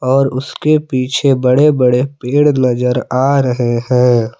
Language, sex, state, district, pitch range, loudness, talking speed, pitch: Hindi, male, Jharkhand, Palamu, 125-135 Hz, -13 LUFS, 135 wpm, 130 Hz